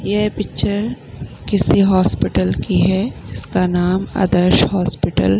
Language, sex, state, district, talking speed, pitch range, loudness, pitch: Hindi, female, Bihar, Vaishali, 120 wpm, 175-200 Hz, -16 LUFS, 185 Hz